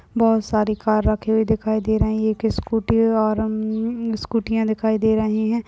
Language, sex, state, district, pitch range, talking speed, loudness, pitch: Hindi, female, Maharashtra, Solapur, 215-225 Hz, 200 wpm, -20 LUFS, 220 Hz